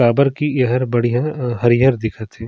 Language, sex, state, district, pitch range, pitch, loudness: Surgujia, male, Chhattisgarh, Sarguja, 120-130 Hz, 120 Hz, -17 LUFS